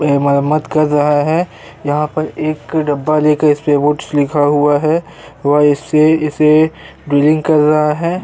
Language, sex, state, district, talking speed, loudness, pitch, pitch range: Hindi, male, Uttar Pradesh, Jyotiba Phule Nagar, 155 wpm, -13 LUFS, 150 Hz, 145-155 Hz